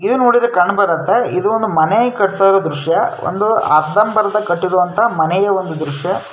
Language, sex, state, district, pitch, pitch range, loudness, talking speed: Kannada, male, Karnataka, Shimoga, 195 Hz, 175-215 Hz, -14 LUFS, 170 wpm